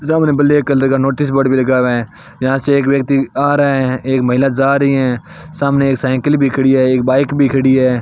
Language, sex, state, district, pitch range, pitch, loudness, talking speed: Hindi, male, Rajasthan, Bikaner, 130-140 Hz, 135 Hz, -13 LUFS, 245 wpm